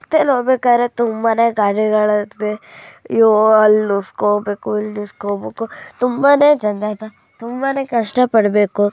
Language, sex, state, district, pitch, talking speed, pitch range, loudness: Kannada, female, Karnataka, Raichur, 220 Hz, 95 wpm, 210-245 Hz, -16 LUFS